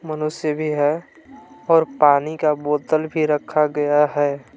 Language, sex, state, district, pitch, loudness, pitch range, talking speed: Hindi, male, Jharkhand, Palamu, 155 Hz, -19 LUFS, 145-160 Hz, 145 wpm